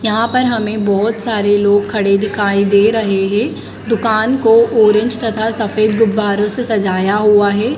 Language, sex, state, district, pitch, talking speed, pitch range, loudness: Hindi, female, Madhya Pradesh, Dhar, 215 Hz, 160 wpm, 205-225 Hz, -13 LUFS